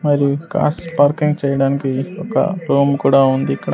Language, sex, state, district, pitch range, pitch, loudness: Telugu, male, Andhra Pradesh, Sri Satya Sai, 135-150 Hz, 140 Hz, -16 LUFS